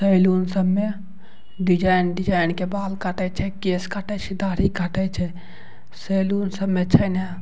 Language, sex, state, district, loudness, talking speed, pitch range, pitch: Maithili, male, Bihar, Madhepura, -22 LUFS, 180 wpm, 185-195 Hz, 190 Hz